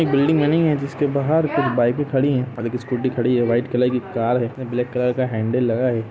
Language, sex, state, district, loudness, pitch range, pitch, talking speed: Hindi, male, Jharkhand, Sahebganj, -20 LUFS, 120-140 Hz, 125 Hz, 275 wpm